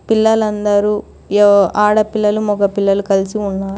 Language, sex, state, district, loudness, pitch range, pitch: Telugu, female, Telangana, Hyderabad, -14 LUFS, 200-210 Hz, 205 Hz